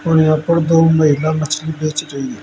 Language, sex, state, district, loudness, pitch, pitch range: Hindi, male, Uttar Pradesh, Saharanpur, -15 LUFS, 155 Hz, 155-160 Hz